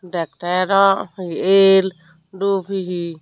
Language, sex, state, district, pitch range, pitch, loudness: Chakma, female, Tripura, Unakoti, 175-195 Hz, 185 Hz, -17 LUFS